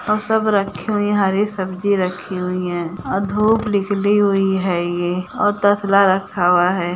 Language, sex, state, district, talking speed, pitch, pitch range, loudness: Hindi, male, Bihar, Gopalganj, 170 wpm, 195 Hz, 180-205 Hz, -18 LUFS